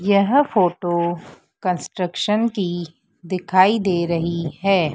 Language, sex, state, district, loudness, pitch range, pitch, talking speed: Hindi, female, Madhya Pradesh, Dhar, -20 LUFS, 170-195 Hz, 180 Hz, 95 wpm